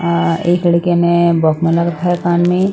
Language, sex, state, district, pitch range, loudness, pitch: Hindi, female, Punjab, Pathankot, 170-175 Hz, -14 LUFS, 170 Hz